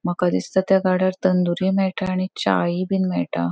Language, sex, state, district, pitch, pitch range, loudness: Konkani, female, Goa, North and South Goa, 185 Hz, 175-190 Hz, -21 LUFS